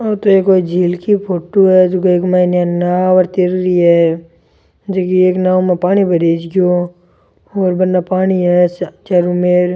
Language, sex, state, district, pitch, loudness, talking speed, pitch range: Rajasthani, male, Rajasthan, Churu, 180 Hz, -13 LUFS, 170 wpm, 180-185 Hz